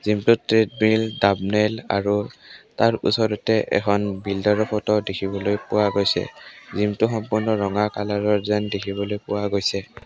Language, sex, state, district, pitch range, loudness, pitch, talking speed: Assamese, male, Assam, Kamrup Metropolitan, 100-110 Hz, -22 LUFS, 105 Hz, 120 wpm